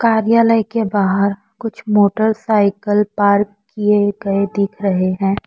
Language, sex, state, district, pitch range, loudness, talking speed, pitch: Hindi, female, Assam, Kamrup Metropolitan, 200-220 Hz, -16 LUFS, 120 wpm, 205 Hz